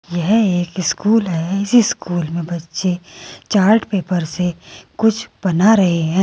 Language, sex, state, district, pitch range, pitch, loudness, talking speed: Hindi, female, Uttar Pradesh, Saharanpur, 170-210 Hz, 185 Hz, -17 LUFS, 145 wpm